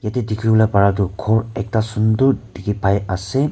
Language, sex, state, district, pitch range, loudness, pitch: Nagamese, male, Nagaland, Kohima, 100-115 Hz, -18 LUFS, 110 Hz